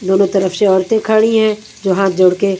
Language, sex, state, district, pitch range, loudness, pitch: Hindi, female, Punjab, Kapurthala, 190-215 Hz, -13 LUFS, 195 Hz